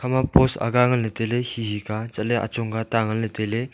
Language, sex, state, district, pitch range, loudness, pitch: Wancho, male, Arunachal Pradesh, Longding, 110-125 Hz, -23 LUFS, 115 Hz